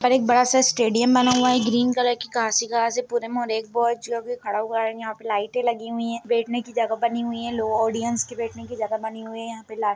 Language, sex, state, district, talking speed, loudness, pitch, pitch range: Hindi, female, Chhattisgarh, Balrampur, 260 wpm, -23 LUFS, 230 Hz, 225-240 Hz